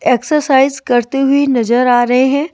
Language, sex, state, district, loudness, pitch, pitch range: Hindi, female, Haryana, Jhajjar, -12 LUFS, 265 Hz, 245-280 Hz